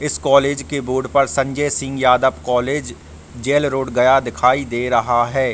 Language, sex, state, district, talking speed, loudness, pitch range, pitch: Hindi, male, Bihar, Gaya, 175 wpm, -17 LUFS, 125-140 Hz, 130 Hz